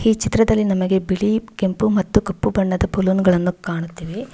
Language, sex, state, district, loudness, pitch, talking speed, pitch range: Kannada, female, Karnataka, Bangalore, -19 LUFS, 195 Hz, 150 wpm, 185-215 Hz